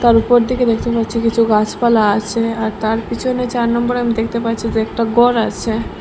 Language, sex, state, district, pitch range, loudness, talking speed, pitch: Bengali, female, Assam, Hailakandi, 225-240 Hz, -16 LUFS, 200 wpm, 230 Hz